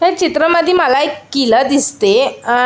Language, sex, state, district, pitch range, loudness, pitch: Marathi, female, Maharashtra, Aurangabad, 270-345 Hz, -13 LUFS, 300 Hz